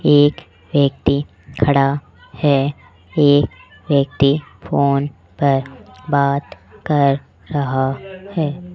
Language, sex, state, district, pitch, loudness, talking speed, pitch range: Hindi, male, Rajasthan, Jaipur, 140 Hz, -18 LUFS, 80 wpm, 135-145 Hz